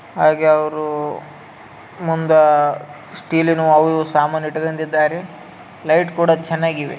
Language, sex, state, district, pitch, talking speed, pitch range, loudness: Kannada, male, Karnataka, Raichur, 155 Hz, 95 wpm, 155-165 Hz, -17 LUFS